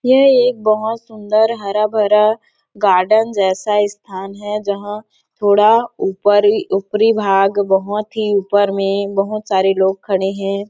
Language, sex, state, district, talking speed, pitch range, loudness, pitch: Hindi, female, Chhattisgarh, Sarguja, 135 wpm, 195-215 Hz, -15 LUFS, 205 Hz